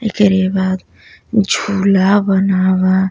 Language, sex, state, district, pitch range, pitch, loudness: Bhojpuri, female, Uttar Pradesh, Deoria, 190-205 Hz, 195 Hz, -14 LUFS